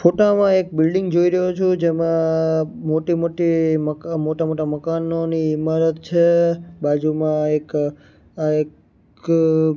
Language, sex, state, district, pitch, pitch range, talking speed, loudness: Gujarati, male, Gujarat, Gandhinagar, 160 Hz, 155-170 Hz, 115 wpm, -19 LUFS